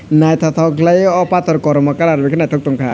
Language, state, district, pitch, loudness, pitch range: Kokborok, Tripura, West Tripura, 160 Hz, -13 LUFS, 150-165 Hz